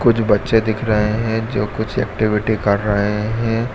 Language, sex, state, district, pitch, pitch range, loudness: Hindi, male, Jharkhand, Jamtara, 110 Hz, 105-115 Hz, -18 LUFS